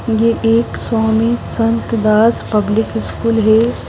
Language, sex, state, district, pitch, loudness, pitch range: Hindi, female, Punjab, Kapurthala, 225 Hz, -14 LUFS, 220-230 Hz